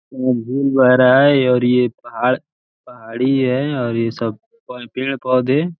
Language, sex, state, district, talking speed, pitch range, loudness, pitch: Hindi, male, Uttar Pradesh, Deoria, 165 wpm, 125-135 Hz, -16 LUFS, 130 Hz